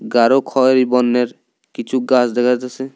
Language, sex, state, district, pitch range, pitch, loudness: Bengali, male, Tripura, South Tripura, 120-130 Hz, 125 Hz, -16 LUFS